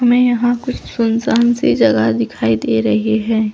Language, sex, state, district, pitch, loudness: Hindi, female, Chhattisgarh, Bastar, 220 Hz, -15 LUFS